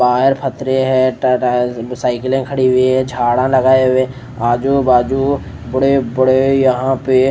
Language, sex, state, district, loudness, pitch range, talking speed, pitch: Hindi, male, Odisha, Nuapada, -14 LUFS, 125-135 Hz, 140 wpm, 130 Hz